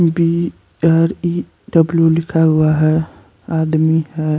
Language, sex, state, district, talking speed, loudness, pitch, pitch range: Hindi, male, Chandigarh, Chandigarh, 135 wpm, -15 LUFS, 160 Hz, 155-165 Hz